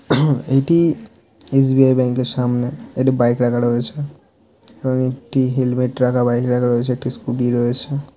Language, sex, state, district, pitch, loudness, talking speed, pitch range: Bengali, male, West Bengal, North 24 Parganas, 125 Hz, -18 LUFS, 140 wpm, 125-135 Hz